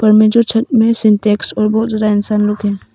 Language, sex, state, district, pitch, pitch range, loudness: Hindi, female, Arunachal Pradesh, Papum Pare, 215 Hz, 210-225 Hz, -13 LUFS